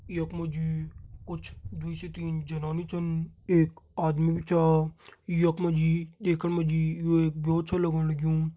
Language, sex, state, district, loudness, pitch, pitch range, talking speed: Garhwali, male, Uttarakhand, Tehri Garhwal, -28 LUFS, 165 Hz, 160-170 Hz, 175 wpm